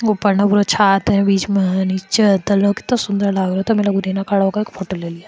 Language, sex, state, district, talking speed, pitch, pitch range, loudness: Marwari, female, Rajasthan, Churu, 160 wpm, 200 Hz, 190-205 Hz, -16 LUFS